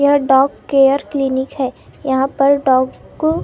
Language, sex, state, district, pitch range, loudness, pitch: Hindi, female, Maharashtra, Gondia, 265-285 Hz, -15 LUFS, 275 Hz